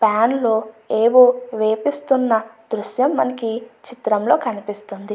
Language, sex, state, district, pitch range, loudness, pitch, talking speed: Telugu, female, Andhra Pradesh, Guntur, 220-250 Hz, -18 LUFS, 225 Hz, 105 wpm